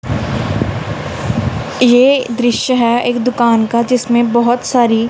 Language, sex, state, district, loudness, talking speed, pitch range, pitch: Hindi, female, Punjab, Kapurthala, -14 LUFS, 105 wpm, 235-250 Hz, 240 Hz